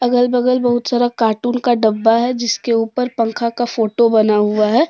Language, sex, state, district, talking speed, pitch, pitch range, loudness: Hindi, female, Jharkhand, Deoghar, 195 wpm, 240 Hz, 225-245 Hz, -16 LUFS